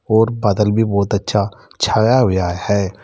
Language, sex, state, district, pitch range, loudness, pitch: Hindi, male, Uttar Pradesh, Saharanpur, 100-110 Hz, -16 LUFS, 100 Hz